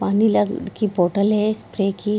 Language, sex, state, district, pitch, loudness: Hindi, female, Bihar, Bhagalpur, 195 Hz, -20 LUFS